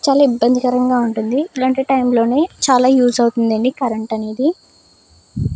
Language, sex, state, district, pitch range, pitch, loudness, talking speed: Telugu, female, Andhra Pradesh, Krishna, 220-260 Hz, 245 Hz, -16 LUFS, 130 wpm